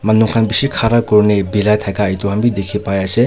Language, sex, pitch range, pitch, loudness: Nagamese, male, 100-115 Hz, 105 Hz, -14 LUFS